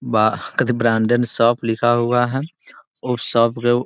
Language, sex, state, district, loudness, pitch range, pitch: Hindi, male, Bihar, Muzaffarpur, -18 LUFS, 115-120 Hz, 120 Hz